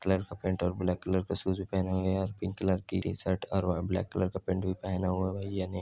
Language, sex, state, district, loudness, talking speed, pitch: Hindi, male, Andhra Pradesh, Chittoor, -32 LUFS, 270 wpm, 95 Hz